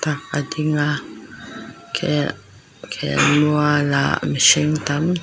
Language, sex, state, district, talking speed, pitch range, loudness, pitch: Mizo, female, Mizoram, Aizawl, 90 wpm, 145-155 Hz, -19 LUFS, 150 Hz